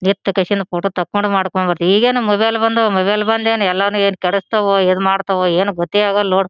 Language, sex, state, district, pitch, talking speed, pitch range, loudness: Kannada, female, Karnataka, Gulbarga, 195 Hz, 205 wpm, 185-205 Hz, -15 LUFS